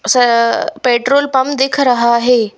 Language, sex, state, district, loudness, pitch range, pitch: Hindi, female, Madhya Pradesh, Bhopal, -13 LUFS, 235-275 Hz, 250 Hz